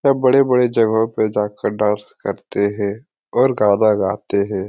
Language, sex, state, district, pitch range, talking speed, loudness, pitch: Hindi, male, Bihar, Jahanabad, 105-120 Hz, 155 wpm, -18 LUFS, 105 Hz